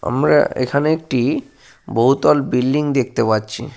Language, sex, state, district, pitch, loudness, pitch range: Bengali, male, Jharkhand, Sahebganj, 130 Hz, -17 LUFS, 120-145 Hz